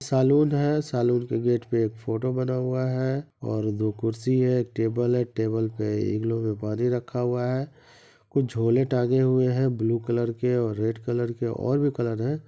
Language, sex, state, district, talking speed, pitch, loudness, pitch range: Hindi, male, Bihar, East Champaran, 200 wpm, 120 Hz, -25 LUFS, 115-130 Hz